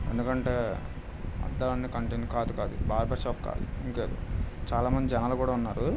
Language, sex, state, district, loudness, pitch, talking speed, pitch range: Telugu, male, Andhra Pradesh, Krishna, -31 LUFS, 120 Hz, 120 wpm, 115-125 Hz